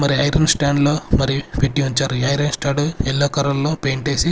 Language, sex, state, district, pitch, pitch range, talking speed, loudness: Telugu, male, Andhra Pradesh, Sri Satya Sai, 140 Hz, 135-145 Hz, 210 wpm, -18 LUFS